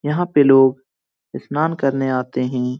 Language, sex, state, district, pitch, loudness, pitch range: Hindi, male, Bihar, Lakhisarai, 135 Hz, -17 LUFS, 130-145 Hz